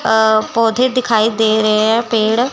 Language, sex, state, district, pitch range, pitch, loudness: Hindi, female, Chandigarh, Chandigarh, 220-230 Hz, 220 Hz, -14 LUFS